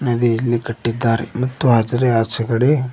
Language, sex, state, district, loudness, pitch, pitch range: Kannada, male, Karnataka, Koppal, -18 LUFS, 120 Hz, 115-125 Hz